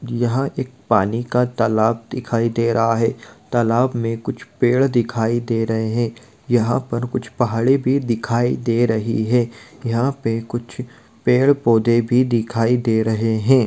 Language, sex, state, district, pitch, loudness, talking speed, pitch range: Hindi, male, Bihar, Gopalganj, 120 Hz, -19 LUFS, 160 wpm, 115-125 Hz